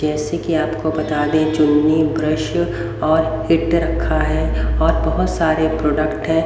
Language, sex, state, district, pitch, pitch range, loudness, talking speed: Hindi, female, Haryana, Rohtak, 155 Hz, 150-160 Hz, -18 LUFS, 150 wpm